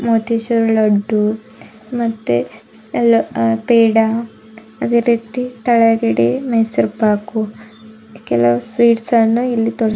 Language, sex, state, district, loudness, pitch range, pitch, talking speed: Kannada, female, Karnataka, Bidar, -16 LUFS, 220-235 Hz, 225 Hz, 95 wpm